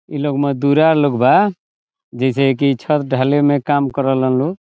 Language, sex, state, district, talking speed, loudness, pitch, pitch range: Bhojpuri, male, Bihar, Saran, 195 wpm, -15 LUFS, 140 Hz, 130-145 Hz